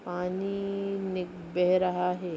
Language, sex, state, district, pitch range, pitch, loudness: Hindi, female, Jharkhand, Jamtara, 180-195 Hz, 180 Hz, -30 LUFS